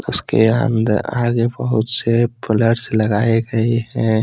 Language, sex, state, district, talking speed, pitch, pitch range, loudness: Hindi, male, Jharkhand, Deoghar, 115 wpm, 115 Hz, 110-120 Hz, -17 LUFS